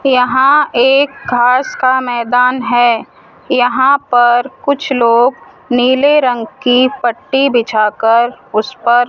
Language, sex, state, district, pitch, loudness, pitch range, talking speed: Hindi, female, Rajasthan, Jaipur, 250 Hz, -12 LUFS, 240-265 Hz, 110 wpm